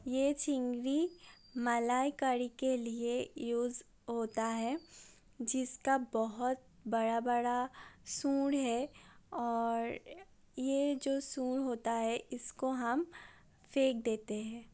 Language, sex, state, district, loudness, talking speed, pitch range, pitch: Hindi, female, Uttar Pradesh, Budaun, -36 LUFS, 105 wpm, 235-270 Hz, 245 Hz